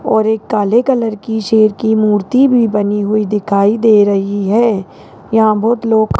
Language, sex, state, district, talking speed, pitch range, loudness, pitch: Hindi, male, Rajasthan, Jaipur, 185 wpm, 205-225 Hz, -13 LUFS, 215 Hz